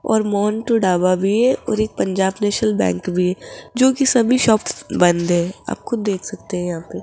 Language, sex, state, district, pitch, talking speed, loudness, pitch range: Hindi, female, Rajasthan, Jaipur, 205 Hz, 220 wpm, -18 LUFS, 180-225 Hz